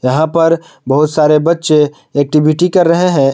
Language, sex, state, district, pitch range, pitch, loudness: Hindi, male, Jharkhand, Garhwa, 150-170 Hz, 155 Hz, -12 LUFS